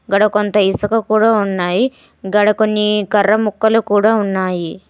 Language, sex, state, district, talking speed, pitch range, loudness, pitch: Telugu, female, Telangana, Hyderabad, 135 wpm, 200-215 Hz, -15 LUFS, 210 Hz